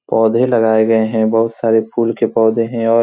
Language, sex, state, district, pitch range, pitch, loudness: Hindi, male, Bihar, Supaul, 110-115 Hz, 115 Hz, -14 LUFS